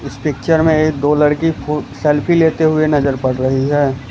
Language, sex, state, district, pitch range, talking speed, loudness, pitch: Hindi, male, Gujarat, Valsad, 140-155 Hz, 205 wpm, -15 LUFS, 150 Hz